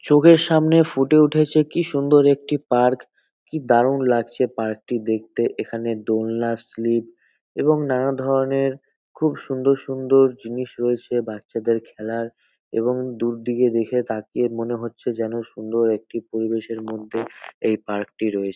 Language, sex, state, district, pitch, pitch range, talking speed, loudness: Bengali, male, West Bengal, North 24 Parganas, 120 Hz, 115-135 Hz, 140 wpm, -21 LUFS